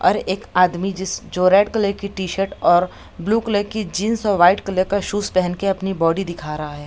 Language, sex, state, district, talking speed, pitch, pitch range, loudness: Hindi, female, Bihar, Samastipur, 225 wpm, 195 Hz, 180-205 Hz, -19 LUFS